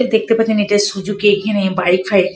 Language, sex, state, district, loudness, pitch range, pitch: Bengali, female, West Bengal, Kolkata, -15 LUFS, 195-215 Hz, 205 Hz